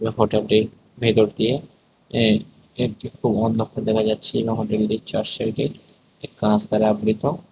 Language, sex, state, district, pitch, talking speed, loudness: Bengali, male, Tripura, West Tripura, 110 Hz, 130 wpm, -22 LUFS